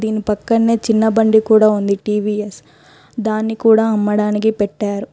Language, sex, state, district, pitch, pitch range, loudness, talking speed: Telugu, female, Telangana, Hyderabad, 215 Hz, 210-220 Hz, -15 LUFS, 140 wpm